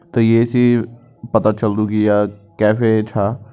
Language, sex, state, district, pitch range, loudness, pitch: Kumaoni, male, Uttarakhand, Tehri Garhwal, 105-115 Hz, -16 LUFS, 110 Hz